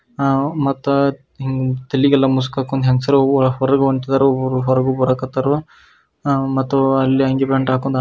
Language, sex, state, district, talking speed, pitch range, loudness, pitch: Kannada, male, Karnataka, Shimoga, 120 wpm, 130-140 Hz, -17 LUFS, 135 Hz